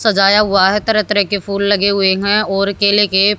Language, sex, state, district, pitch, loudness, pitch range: Hindi, female, Haryana, Jhajjar, 200 Hz, -13 LUFS, 200-210 Hz